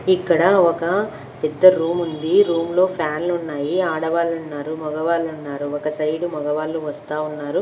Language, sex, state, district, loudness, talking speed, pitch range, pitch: Telugu, female, Andhra Pradesh, Manyam, -20 LUFS, 110 wpm, 150-175 Hz, 160 Hz